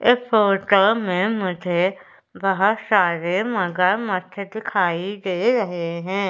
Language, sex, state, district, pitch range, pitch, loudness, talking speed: Hindi, female, Madhya Pradesh, Umaria, 180-215 Hz, 195 Hz, -20 LUFS, 95 wpm